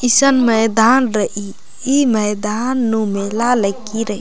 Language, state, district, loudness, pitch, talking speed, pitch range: Kurukh, Chhattisgarh, Jashpur, -15 LUFS, 225 Hz, 140 wpm, 210-250 Hz